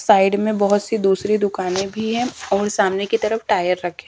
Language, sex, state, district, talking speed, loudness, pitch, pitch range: Hindi, female, Madhya Pradesh, Dhar, 205 wpm, -19 LUFS, 205 Hz, 195-215 Hz